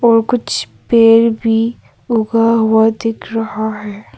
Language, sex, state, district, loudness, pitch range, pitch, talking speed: Hindi, female, Arunachal Pradesh, Papum Pare, -14 LUFS, 220-230 Hz, 225 Hz, 130 wpm